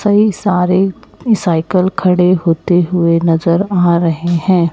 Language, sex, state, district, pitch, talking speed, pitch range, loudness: Hindi, male, Chhattisgarh, Raipur, 180 Hz, 125 wpm, 170-190 Hz, -13 LUFS